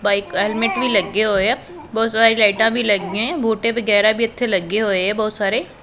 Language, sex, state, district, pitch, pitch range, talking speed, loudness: Punjabi, female, Punjab, Pathankot, 215 Hz, 200-230 Hz, 225 wpm, -17 LUFS